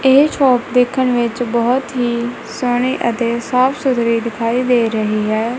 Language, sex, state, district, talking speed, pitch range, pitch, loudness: Punjabi, female, Punjab, Kapurthala, 150 wpm, 235-255 Hz, 245 Hz, -16 LUFS